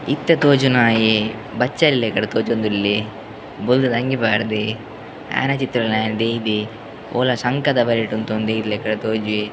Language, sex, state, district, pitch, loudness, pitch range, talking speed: Tulu, male, Karnataka, Dakshina Kannada, 110 Hz, -19 LUFS, 110-125 Hz, 140 wpm